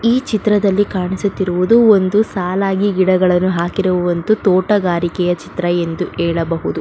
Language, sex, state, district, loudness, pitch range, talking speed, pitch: Kannada, female, Karnataka, Belgaum, -15 LUFS, 175-205 Hz, 105 wpm, 185 Hz